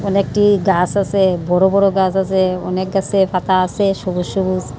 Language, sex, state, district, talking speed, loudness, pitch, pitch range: Bengali, female, Tripura, Unakoti, 175 wpm, -16 LUFS, 190 Hz, 185-195 Hz